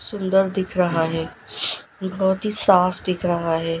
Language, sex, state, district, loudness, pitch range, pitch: Hindi, female, Gujarat, Gandhinagar, -21 LUFS, 165-190 Hz, 185 Hz